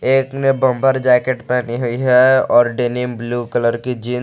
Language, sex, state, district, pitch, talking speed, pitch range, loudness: Hindi, male, Jharkhand, Garhwa, 125 Hz, 200 wpm, 120-130 Hz, -16 LUFS